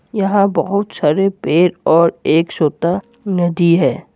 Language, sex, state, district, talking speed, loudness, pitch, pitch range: Hindi, male, Assam, Kamrup Metropolitan, 130 wpm, -15 LUFS, 175 Hz, 170-200 Hz